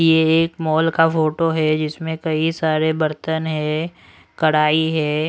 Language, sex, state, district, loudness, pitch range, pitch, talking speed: Hindi, male, Odisha, Sambalpur, -19 LUFS, 155-160 Hz, 160 Hz, 145 wpm